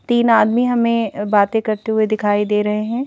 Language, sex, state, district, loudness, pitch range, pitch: Hindi, female, Madhya Pradesh, Bhopal, -17 LUFS, 210-230 Hz, 220 Hz